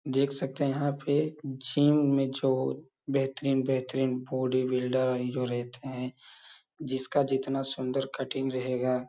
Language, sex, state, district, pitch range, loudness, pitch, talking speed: Hindi, male, Uttar Pradesh, Hamirpur, 130-135 Hz, -29 LUFS, 135 Hz, 145 wpm